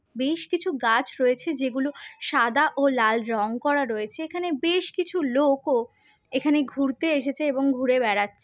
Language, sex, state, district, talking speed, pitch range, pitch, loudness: Bengali, female, West Bengal, Jhargram, 150 wpm, 250-320 Hz, 280 Hz, -24 LUFS